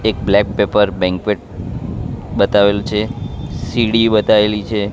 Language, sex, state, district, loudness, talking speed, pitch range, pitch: Gujarati, male, Gujarat, Gandhinagar, -16 LUFS, 110 wpm, 100-110 Hz, 105 Hz